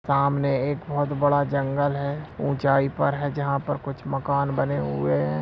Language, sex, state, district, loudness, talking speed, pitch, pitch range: Hindi, male, Bihar, Bhagalpur, -24 LUFS, 175 wpm, 140 Hz, 135-145 Hz